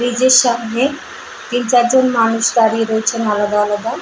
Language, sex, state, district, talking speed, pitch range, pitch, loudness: Bengali, female, West Bengal, Jalpaiguri, 165 wpm, 220-245 Hz, 230 Hz, -14 LUFS